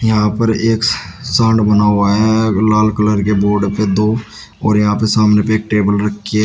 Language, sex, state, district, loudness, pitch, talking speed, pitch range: Hindi, male, Uttar Pradesh, Shamli, -14 LUFS, 105 Hz, 205 wpm, 105-110 Hz